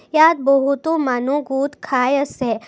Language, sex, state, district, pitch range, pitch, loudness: Assamese, female, Assam, Kamrup Metropolitan, 260-295 Hz, 275 Hz, -18 LUFS